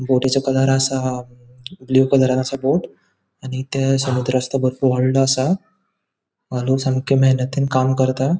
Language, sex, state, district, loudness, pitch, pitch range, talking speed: Konkani, male, Goa, North and South Goa, -18 LUFS, 130 Hz, 130-135 Hz, 130 wpm